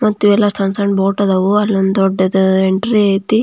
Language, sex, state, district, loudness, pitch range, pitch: Kannada, female, Karnataka, Belgaum, -14 LUFS, 190-205 Hz, 200 Hz